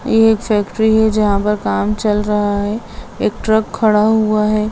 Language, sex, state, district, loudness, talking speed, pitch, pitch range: Hindi, female, Bihar, Begusarai, -15 LUFS, 205 wpm, 215 Hz, 210-220 Hz